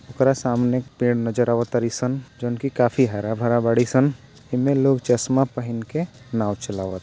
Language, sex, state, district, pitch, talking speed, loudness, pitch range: Bhojpuri, male, Bihar, Gopalganj, 125 Hz, 180 wpm, -22 LUFS, 120-130 Hz